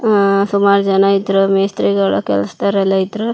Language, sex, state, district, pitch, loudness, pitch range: Kannada, female, Karnataka, Shimoga, 195 Hz, -14 LUFS, 190-200 Hz